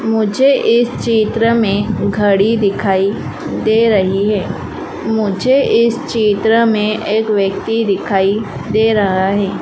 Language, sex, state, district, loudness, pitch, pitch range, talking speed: Hindi, female, Madhya Pradesh, Dhar, -14 LUFS, 215 Hz, 200-225 Hz, 120 wpm